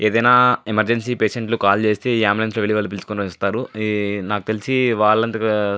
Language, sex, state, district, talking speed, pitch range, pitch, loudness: Telugu, male, Andhra Pradesh, Anantapur, 175 wpm, 105-115 Hz, 110 Hz, -19 LUFS